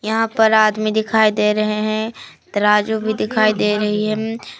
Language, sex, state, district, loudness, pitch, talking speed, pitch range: Hindi, female, Jharkhand, Palamu, -17 LUFS, 215 Hz, 170 wpm, 210-220 Hz